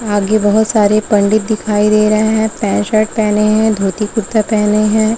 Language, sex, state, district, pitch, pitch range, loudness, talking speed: Hindi, female, Chhattisgarh, Balrampur, 215 Hz, 210-220 Hz, -13 LUFS, 185 wpm